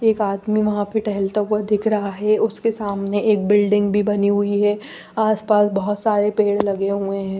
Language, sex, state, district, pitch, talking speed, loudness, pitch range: Hindi, female, Bihar, Patna, 205 Hz, 205 wpm, -19 LUFS, 200-215 Hz